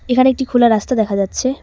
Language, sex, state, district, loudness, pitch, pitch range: Bengali, female, West Bengal, Cooch Behar, -15 LUFS, 245 Hz, 220-260 Hz